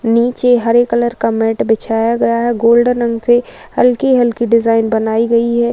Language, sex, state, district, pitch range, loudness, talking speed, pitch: Hindi, female, Uttar Pradesh, Varanasi, 230-240 Hz, -13 LUFS, 170 wpm, 235 Hz